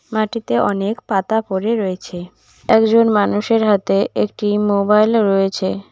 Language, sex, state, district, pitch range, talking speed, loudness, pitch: Bengali, female, West Bengal, Cooch Behar, 195-220 Hz, 120 wpm, -16 LUFS, 205 Hz